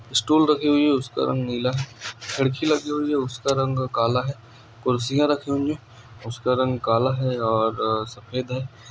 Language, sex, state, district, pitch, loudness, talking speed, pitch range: Hindi, male, Andhra Pradesh, Anantapur, 125 Hz, -23 LUFS, 135 wpm, 115-140 Hz